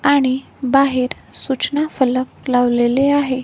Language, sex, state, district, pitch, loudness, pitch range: Marathi, female, Maharashtra, Gondia, 260 Hz, -17 LUFS, 255-280 Hz